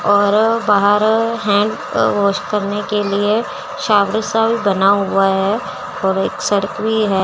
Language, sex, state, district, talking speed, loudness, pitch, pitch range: Hindi, female, Chandigarh, Chandigarh, 160 wpm, -16 LUFS, 205 Hz, 200-220 Hz